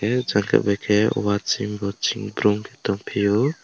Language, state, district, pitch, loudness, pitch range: Kokborok, Tripura, West Tripura, 105 Hz, -22 LUFS, 100-105 Hz